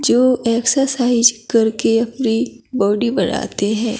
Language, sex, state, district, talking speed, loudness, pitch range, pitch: Hindi, female, Chhattisgarh, Kabirdham, 105 wpm, -16 LUFS, 225-245 Hz, 230 Hz